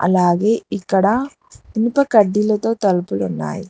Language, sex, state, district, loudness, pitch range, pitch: Telugu, female, Telangana, Hyderabad, -17 LUFS, 180-225 Hz, 205 Hz